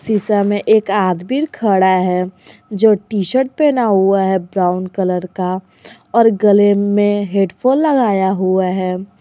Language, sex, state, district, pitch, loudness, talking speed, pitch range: Hindi, female, Jharkhand, Garhwa, 200 Hz, -15 LUFS, 145 wpm, 185-215 Hz